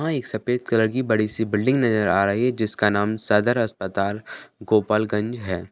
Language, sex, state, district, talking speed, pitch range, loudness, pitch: Hindi, male, Bihar, Bhagalpur, 190 wpm, 105-120 Hz, -22 LUFS, 110 Hz